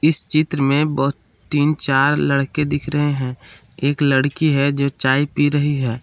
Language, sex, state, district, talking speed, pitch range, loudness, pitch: Hindi, male, Jharkhand, Palamu, 180 wpm, 135-145 Hz, -18 LUFS, 140 Hz